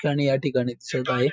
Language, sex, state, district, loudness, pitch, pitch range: Marathi, female, Maharashtra, Dhule, -24 LUFS, 135 Hz, 130-140 Hz